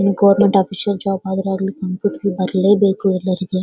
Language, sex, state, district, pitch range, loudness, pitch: Kannada, female, Karnataka, Bellary, 185-200 Hz, -17 LUFS, 195 Hz